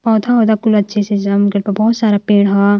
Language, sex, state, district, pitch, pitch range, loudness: Hindi, female, Uttar Pradesh, Varanasi, 205 Hz, 200-220 Hz, -13 LUFS